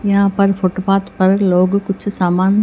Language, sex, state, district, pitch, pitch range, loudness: Hindi, female, Chhattisgarh, Raipur, 195 Hz, 185-200 Hz, -15 LUFS